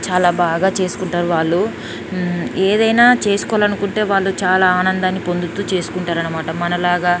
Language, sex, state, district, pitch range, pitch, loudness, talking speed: Telugu, female, Telangana, Nalgonda, 175-195 Hz, 185 Hz, -16 LUFS, 100 wpm